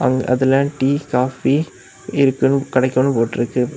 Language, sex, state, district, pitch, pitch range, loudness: Tamil, male, Tamil Nadu, Kanyakumari, 130 Hz, 125-140 Hz, -17 LUFS